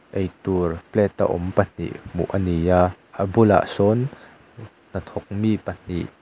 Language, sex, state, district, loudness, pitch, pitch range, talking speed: Mizo, male, Mizoram, Aizawl, -22 LUFS, 95 Hz, 90-105 Hz, 135 wpm